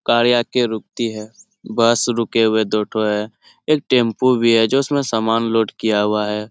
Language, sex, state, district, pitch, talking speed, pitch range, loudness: Hindi, male, Bihar, Lakhisarai, 115 Hz, 200 wpm, 110-120 Hz, -18 LUFS